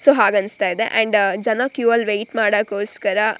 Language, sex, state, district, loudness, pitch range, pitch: Kannada, female, Karnataka, Shimoga, -18 LUFS, 205-235 Hz, 215 Hz